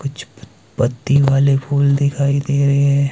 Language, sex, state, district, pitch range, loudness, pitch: Hindi, male, Himachal Pradesh, Shimla, 135-140 Hz, -16 LUFS, 140 Hz